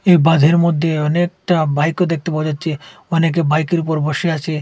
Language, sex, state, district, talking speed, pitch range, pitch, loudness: Bengali, male, Assam, Hailakandi, 170 wpm, 155-170 Hz, 165 Hz, -16 LUFS